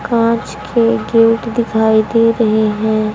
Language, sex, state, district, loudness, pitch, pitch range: Hindi, female, Haryana, Rohtak, -14 LUFS, 225 Hz, 220-230 Hz